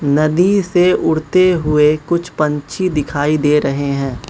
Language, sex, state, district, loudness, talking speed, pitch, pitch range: Hindi, male, Manipur, Imphal West, -15 LUFS, 140 wpm, 155 Hz, 145-175 Hz